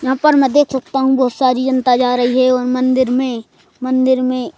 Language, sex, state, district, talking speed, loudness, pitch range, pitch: Hindi, male, Madhya Pradesh, Bhopal, 225 wpm, -14 LUFS, 255-265 Hz, 255 Hz